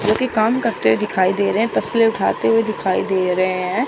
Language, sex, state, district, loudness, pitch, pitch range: Hindi, female, Chandigarh, Chandigarh, -18 LUFS, 210 Hz, 185-225 Hz